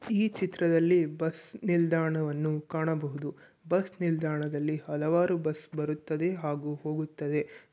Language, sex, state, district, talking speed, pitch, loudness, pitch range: Kannada, male, Karnataka, Shimoga, 95 wpm, 160 Hz, -30 LUFS, 150-170 Hz